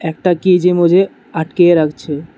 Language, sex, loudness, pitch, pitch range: Bengali, male, -13 LUFS, 170 Hz, 160-180 Hz